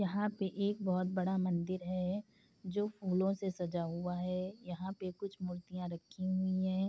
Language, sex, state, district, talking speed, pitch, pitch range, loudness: Hindi, female, Bihar, Saharsa, 185 wpm, 185 Hz, 180-195 Hz, -38 LUFS